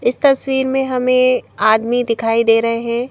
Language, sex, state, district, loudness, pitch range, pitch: Hindi, female, Madhya Pradesh, Bhopal, -15 LUFS, 230-255 Hz, 245 Hz